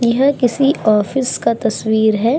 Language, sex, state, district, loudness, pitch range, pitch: Hindi, female, Uttar Pradesh, Hamirpur, -15 LUFS, 220-270 Hz, 235 Hz